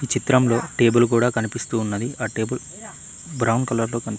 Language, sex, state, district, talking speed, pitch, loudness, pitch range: Telugu, male, Telangana, Mahabubabad, 170 wpm, 120 Hz, -21 LUFS, 115-125 Hz